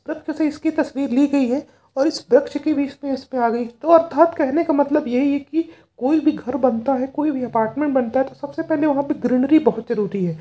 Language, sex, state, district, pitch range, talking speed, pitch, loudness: Hindi, male, Uttar Pradesh, Varanasi, 260-310 Hz, 240 wpm, 280 Hz, -20 LUFS